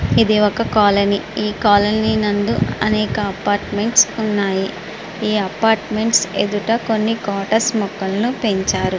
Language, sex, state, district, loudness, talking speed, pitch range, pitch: Telugu, male, Andhra Pradesh, Srikakulam, -17 LUFS, 105 wpm, 200-220 Hz, 210 Hz